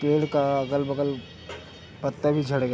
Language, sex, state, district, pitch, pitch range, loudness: Hindi, male, Chhattisgarh, Bilaspur, 140 Hz, 115-145 Hz, -26 LUFS